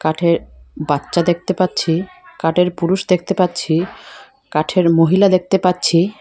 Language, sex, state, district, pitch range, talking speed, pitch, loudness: Bengali, female, Assam, Hailakandi, 165-190 Hz, 115 wpm, 180 Hz, -16 LUFS